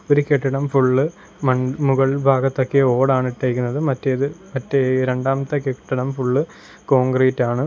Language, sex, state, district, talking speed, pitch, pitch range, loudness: Malayalam, male, Kerala, Kollam, 115 wpm, 135 Hz, 130-140 Hz, -19 LUFS